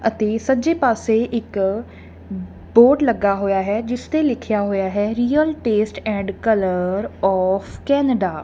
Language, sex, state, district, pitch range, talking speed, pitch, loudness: Punjabi, female, Punjab, Kapurthala, 195-240 Hz, 140 wpm, 215 Hz, -19 LUFS